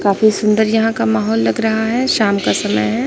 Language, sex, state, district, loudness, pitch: Hindi, female, Chhattisgarh, Raipur, -15 LUFS, 215 Hz